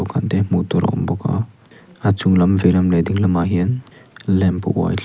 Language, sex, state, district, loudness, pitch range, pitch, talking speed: Mizo, male, Mizoram, Aizawl, -18 LUFS, 90-115 Hz, 95 Hz, 190 wpm